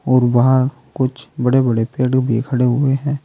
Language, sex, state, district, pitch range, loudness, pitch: Hindi, male, Uttar Pradesh, Saharanpur, 125-135 Hz, -17 LUFS, 130 Hz